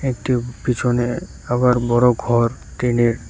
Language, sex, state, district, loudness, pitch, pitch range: Bengali, male, West Bengal, Cooch Behar, -19 LUFS, 120 Hz, 120-125 Hz